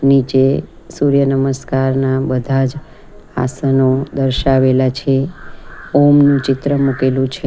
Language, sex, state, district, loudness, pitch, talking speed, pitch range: Gujarati, female, Gujarat, Valsad, -15 LUFS, 135 Hz, 95 wpm, 130-140 Hz